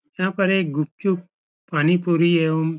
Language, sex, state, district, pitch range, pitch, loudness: Hindi, male, Uttar Pradesh, Etah, 160-190 Hz, 170 Hz, -21 LUFS